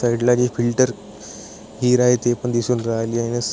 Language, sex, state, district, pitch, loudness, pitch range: Marathi, male, Maharashtra, Chandrapur, 120 Hz, -19 LUFS, 115-125 Hz